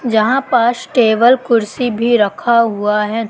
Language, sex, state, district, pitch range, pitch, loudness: Hindi, female, Madhya Pradesh, Katni, 215-240 Hz, 235 Hz, -14 LUFS